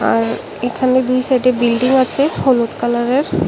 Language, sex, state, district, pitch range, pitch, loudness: Bengali, female, Tripura, West Tripura, 240-260 Hz, 255 Hz, -15 LUFS